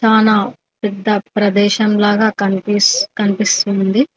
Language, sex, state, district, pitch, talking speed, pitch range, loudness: Telugu, female, Telangana, Mahabubabad, 210 Hz, 85 wpm, 200-220 Hz, -14 LUFS